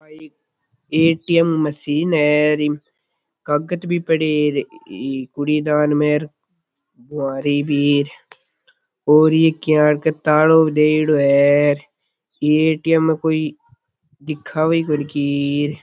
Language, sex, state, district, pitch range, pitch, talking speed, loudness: Rajasthani, male, Rajasthan, Churu, 145-160 Hz, 150 Hz, 95 wpm, -17 LUFS